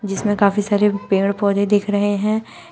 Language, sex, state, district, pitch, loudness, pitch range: Hindi, female, Uttar Pradesh, Shamli, 205 Hz, -18 LUFS, 200-205 Hz